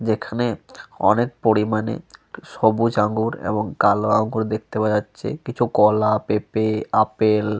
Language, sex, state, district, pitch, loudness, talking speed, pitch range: Bengali, male, Jharkhand, Sahebganj, 110 Hz, -20 LUFS, 125 wpm, 105-110 Hz